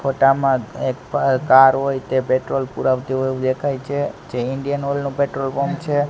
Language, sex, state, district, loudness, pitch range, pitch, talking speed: Gujarati, male, Gujarat, Gandhinagar, -19 LUFS, 130-140 Hz, 135 Hz, 195 wpm